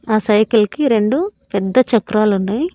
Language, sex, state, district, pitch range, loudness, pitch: Telugu, female, Andhra Pradesh, Annamaya, 210-255 Hz, -16 LUFS, 220 Hz